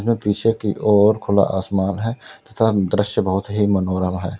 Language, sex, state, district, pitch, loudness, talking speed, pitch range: Hindi, male, Uttar Pradesh, Lalitpur, 105 Hz, -19 LUFS, 175 wpm, 95-110 Hz